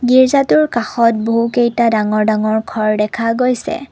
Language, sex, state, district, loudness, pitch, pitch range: Assamese, female, Assam, Kamrup Metropolitan, -14 LUFS, 230 Hz, 220-250 Hz